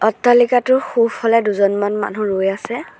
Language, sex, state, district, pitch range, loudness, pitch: Assamese, female, Assam, Sonitpur, 205-245 Hz, -16 LUFS, 220 Hz